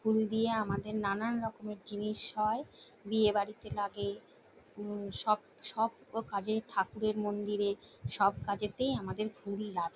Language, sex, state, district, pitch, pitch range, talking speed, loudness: Bengali, female, West Bengal, Jalpaiguri, 210 Hz, 200-220 Hz, 110 wpm, -35 LUFS